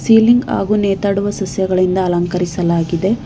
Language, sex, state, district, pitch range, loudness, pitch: Kannada, female, Karnataka, Bangalore, 180-205 Hz, -15 LUFS, 190 Hz